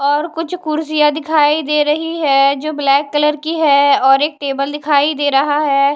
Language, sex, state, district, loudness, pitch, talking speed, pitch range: Hindi, female, Odisha, Khordha, -14 LUFS, 295 Hz, 190 wpm, 280-310 Hz